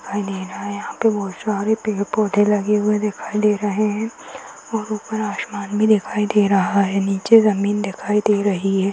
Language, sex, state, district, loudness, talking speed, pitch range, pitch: Hindi, female, Bihar, Jahanabad, -19 LUFS, 200 wpm, 200-215 Hz, 210 Hz